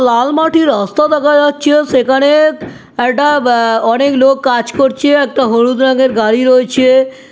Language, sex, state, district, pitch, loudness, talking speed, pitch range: Bengali, female, West Bengal, North 24 Parganas, 265 Hz, -11 LUFS, 155 wpm, 245-290 Hz